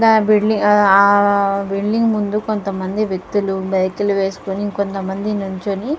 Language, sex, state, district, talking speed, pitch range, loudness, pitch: Telugu, female, Andhra Pradesh, Guntur, 80 wpm, 195-210 Hz, -17 LUFS, 200 Hz